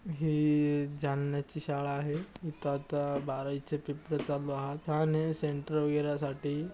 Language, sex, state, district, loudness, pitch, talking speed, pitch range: Marathi, female, Maharashtra, Aurangabad, -33 LUFS, 145 Hz, 135 wpm, 140-155 Hz